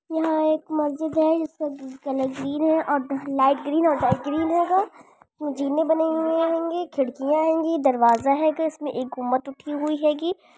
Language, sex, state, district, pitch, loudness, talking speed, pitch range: Hindi, female, Andhra Pradesh, Chittoor, 305 Hz, -23 LUFS, 45 wpm, 275-320 Hz